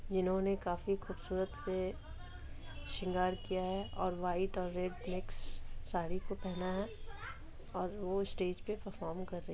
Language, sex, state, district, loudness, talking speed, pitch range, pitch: Hindi, female, Jharkhand, Sahebganj, -39 LUFS, 145 wpm, 180-195 Hz, 185 Hz